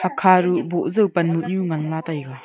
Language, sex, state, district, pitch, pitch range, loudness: Wancho, female, Arunachal Pradesh, Longding, 175 Hz, 160-185 Hz, -20 LUFS